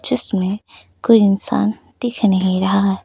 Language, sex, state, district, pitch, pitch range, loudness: Hindi, female, Uttar Pradesh, Lucknow, 200 Hz, 190-215 Hz, -17 LUFS